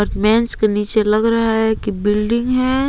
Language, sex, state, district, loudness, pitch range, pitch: Hindi, female, Jharkhand, Palamu, -16 LUFS, 210-230 Hz, 220 Hz